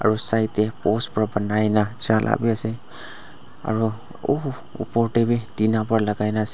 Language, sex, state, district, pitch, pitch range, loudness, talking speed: Nagamese, male, Nagaland, Dimapur, 110 Hz, 110-115 Hz, -22 LUFS, 165 wpm